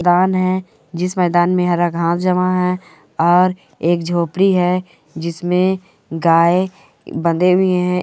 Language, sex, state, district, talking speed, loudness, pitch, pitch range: Hindi, female, Bihar, Bhagalpur, 135 wpm, -16 LUFS, 180 Hz, 170-185 Hz